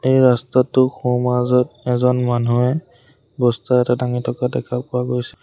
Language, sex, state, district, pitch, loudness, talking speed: Assamese, male, Assam, Sonitpur, 125 Hz, -18 LUFS, 145 wpm